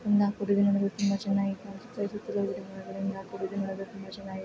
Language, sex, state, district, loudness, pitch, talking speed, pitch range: Kannada, male, Karnataka, Bijapur, -31 LUFS, 200 Hz, 160 wpm, 195-200 Hz